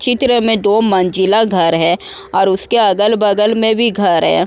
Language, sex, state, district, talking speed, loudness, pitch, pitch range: Hindi, female, Uttar Pradesh, Muzaffarnagar, 190 wpm, -13 LUFS, 210 Hz, 190-225 Hz